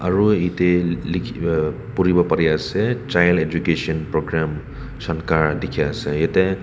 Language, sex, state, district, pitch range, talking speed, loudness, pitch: Nagamese, male, Nagaland, Kohima, 80-95 Hz, 125 wpm, -20 LUFS, 85 Hz